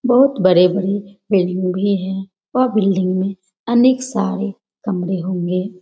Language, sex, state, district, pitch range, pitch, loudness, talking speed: Hindi, female, Bihar, Jamui, 185-210 Hz, 195 Hz, -18 LUFS, 125 wpm